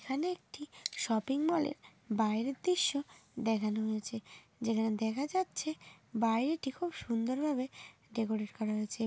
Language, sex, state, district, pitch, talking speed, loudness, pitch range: Bengali, female, West Bengal, North 24 Parganas, 235 Hz, 125 wpm, -35 LUFS, 220-290 Hz